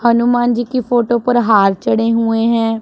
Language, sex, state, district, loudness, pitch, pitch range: Hindi, female, Punjab, Pathankot, -14 LUFS, 235 Hz, 225-240 Hz